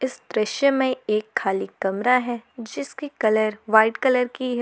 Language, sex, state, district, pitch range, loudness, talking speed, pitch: Hindi, female, Jharkhand, Garhwa, 215-260 Hz, -22 LUFS, 155 wpm, 240 Hz